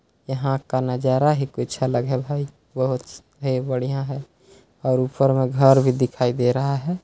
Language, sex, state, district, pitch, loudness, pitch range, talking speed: Hindi, male, Chhattisgarh, Balrampur, 130 Hz, -22 LUFS, 125-135 Hz, 170 wpm